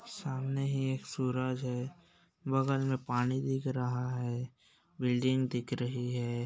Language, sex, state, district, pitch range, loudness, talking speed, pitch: Hindi, male, Bihar, Bhagalpur, 125-135 Hz, -34 LUFS, 130 wpm, 130 Hz